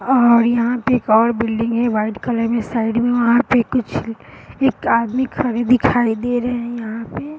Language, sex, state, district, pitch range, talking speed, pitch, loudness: Hindi, female, Bihar, Madhepura, 230-245 Hz, 205 wpm, 235 Hz, -17 LUFS